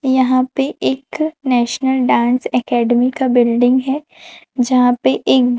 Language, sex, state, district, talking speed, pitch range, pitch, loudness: Hindi, female, Chhattisgarh, Raipur, 130 wpm, 245-265 Hz, 255 Hz, -15 LUFS